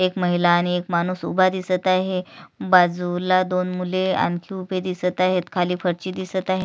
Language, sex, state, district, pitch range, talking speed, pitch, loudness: Marathi, female, Maharashtra, Sindhudurg, 180-185 Hz, 170 wpm, 185 Hz, -21 LUFS